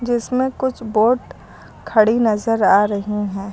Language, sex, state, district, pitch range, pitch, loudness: Hindi, female, Uttar Pradesh, Lucknow, 210-240 Hz, 225 Hz, -18 LUFS